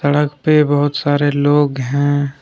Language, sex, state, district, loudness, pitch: Hindi, male, Jharkhand, Deoghar, -15 LUFS, 145 Hz